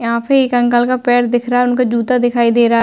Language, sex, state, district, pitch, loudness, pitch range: Hindi, female, Uttar Pradesh, Hamirpur, 245 Hz, -14 LUFS, 235-250 Hz